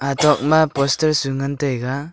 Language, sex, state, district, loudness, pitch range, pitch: Wancho, male, Arunachal Pradesh, Longding, -18 LUFS, 135-150 Hz, 140 Hz